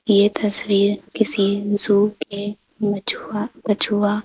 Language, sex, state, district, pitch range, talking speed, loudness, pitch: Hindi, female, Madhya Pradesh, Bhopal, 200-210 Hz, 100 wpm, -18 LUFS, 205 Hz